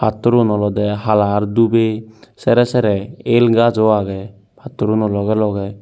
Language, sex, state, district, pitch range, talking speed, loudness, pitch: Chakma, male, Tripura, Unakoti, 105-115 Hz, 145 wpm, -16 LUFS, 110 Hz